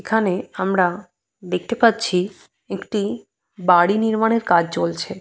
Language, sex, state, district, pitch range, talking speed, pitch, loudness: Bengali, female, West Bengal, Purulia, 180-220 Hz, 115 wpm, 190 Hz, -20 LUFS